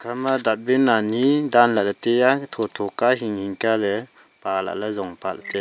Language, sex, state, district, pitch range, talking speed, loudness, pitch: Wancho, male, Arunachal Pradesh, Longding, 100-125 Hz, 170 wpm, -21 LUFS, 110 Hz